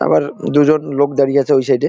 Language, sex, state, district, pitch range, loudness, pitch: Bengali, male, West Bengal, Jalpaiguri, 140-145 Hz, -14 LUFS, 145 Hz